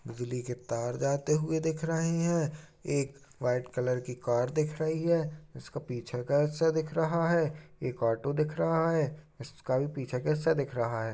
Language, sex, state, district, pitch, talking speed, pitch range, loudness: Hindi, male, Chhattisgarh, Raigarh, 145 Hz, 185 wpm, 125-160 Hz, -31 LUFS